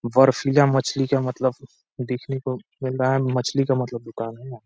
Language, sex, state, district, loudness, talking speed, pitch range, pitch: Hindi, male, Uttar Pradesh, Deoria, -23 LUFS, 195 wpm, 125-135 Hz, 130 Hz